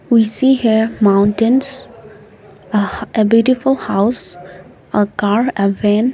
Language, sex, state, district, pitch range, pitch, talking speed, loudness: English, female, Nagaland, Kohima, 200-235 Hz, 215 Hz, 115 wpm, -15 LUFS